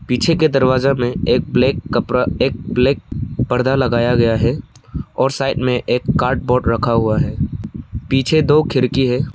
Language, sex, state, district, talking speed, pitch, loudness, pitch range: Hindi, male, Arunachal Pradesh, Lower Dibang Valley, 160 wpm, 125 Hz, -16 LUFS, 120-135 Hz